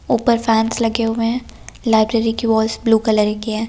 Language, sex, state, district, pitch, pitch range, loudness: Hindi, female, Delhi, New Delhi, 225 Hz, 220-230 Hz, -17 LUFS